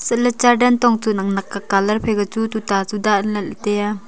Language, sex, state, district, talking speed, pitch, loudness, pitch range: Wancho, female, Arunachal Pradesh, Longding, 205 wpm, 210 Hz, -18 LUFS, 200-225 Hz